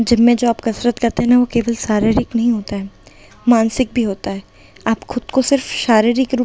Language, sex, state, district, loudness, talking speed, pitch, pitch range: Hindi, female, Delhi, New Delhi, -16 LUFS, 230 wpm, 235 Hz, 220-245 Hz